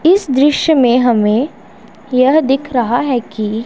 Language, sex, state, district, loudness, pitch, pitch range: Hindi, male, Punjab, Pathankot, -13 LUFS, 255 Hz, 230-285 Hz